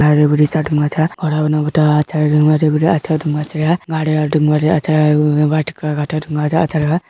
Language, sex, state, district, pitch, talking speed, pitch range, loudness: Hindi, male, Bihar, Bhagalpur, 155 Hz, 95 wpm, 150-155 Hz, -15 LUFS